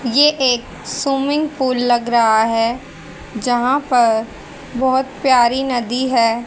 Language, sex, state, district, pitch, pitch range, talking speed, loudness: Hindi, female, Haryana, Rohtak, 250 Hz, 235-265 Hz, 120 wpm, -16 LUFS